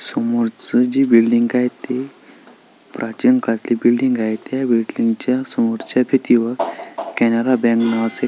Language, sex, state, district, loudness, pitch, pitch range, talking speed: Marathi, male, Maharashtra, Sindhudurg, -17 LUFS, 120 Hz, 115-130 Hz, 125 wpm